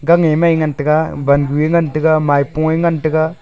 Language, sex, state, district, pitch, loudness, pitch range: Wancho, male, Arunachal Pradesh, Longding, 155 Hz, -14 LUFS, 150-160 Hz